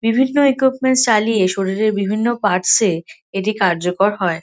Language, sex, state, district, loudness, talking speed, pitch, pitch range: Bengali, female, West Bengal, North 24 Parganas, -16 LUFS, 135 wpm, 210 Hz, 190-235 Hz